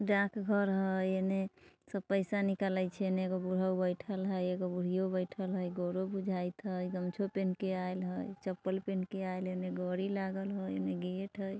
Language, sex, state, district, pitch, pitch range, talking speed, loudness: Bajjika, female, Bihar, Vaishali, 190 Hz, 185-195 Hz, 180 wpm, -36 LUFS